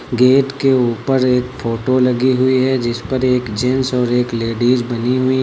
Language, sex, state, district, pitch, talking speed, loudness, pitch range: Hindi, male, Uttar Pradesh, Lucknow, 125 Hz, 190 wpm, -16 LUFS, 120-130 Hz